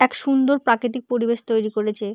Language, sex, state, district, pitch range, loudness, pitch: Bengali, female, West Bengal, Purulia, 220-255 Hz, -21 LUFS, 235 Hz